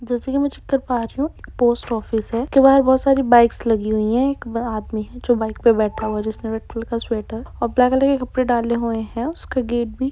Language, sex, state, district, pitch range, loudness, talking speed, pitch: Hindi, female, Jharkhand, Sahebganj, 225-260 Hz, -19 LUFS, 245 wpm, 235 Hz